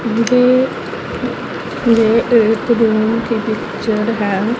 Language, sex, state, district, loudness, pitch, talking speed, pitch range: Hindi, female, Punjab, Pathankot, -15 LUFS, 230 Hz, 90 wpm, 220-235 Hz